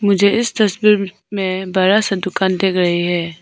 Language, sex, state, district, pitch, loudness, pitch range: Hindi, female, Arunachal Pradesh, Papum Pare, 195 Hz, -16 LUFS, 185-205 Hz